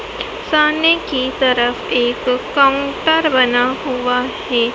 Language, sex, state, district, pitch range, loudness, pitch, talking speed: Hindi, female, Madhya Pradesh, Dhar, 250-305 Hz, -16 LUFS, 260 Hz, 100 wpm